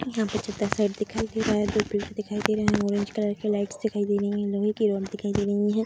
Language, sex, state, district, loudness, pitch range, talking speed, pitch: Hindi, female, Bihar, Darbhanga, -26 LUFS, 205-215 Hz, 285 wpm, 210 Hz